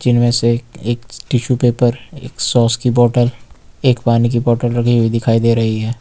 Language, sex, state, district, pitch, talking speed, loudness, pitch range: Hindi, male, Jharkhand, Ranchi, 120 Hz, 190 wpm, -15 LUFS, 115-120 Hz